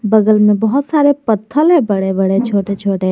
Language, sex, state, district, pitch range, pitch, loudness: Hindi, female, Jharkhand, Garhwa, 200-270 Hz, 215 Hz, -13 LUFS